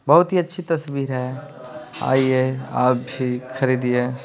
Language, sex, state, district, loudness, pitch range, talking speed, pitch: Hindi, male, Bihar, Patna, -21 LUFS, 125-145 Hz, 140 wpm, 130 Hz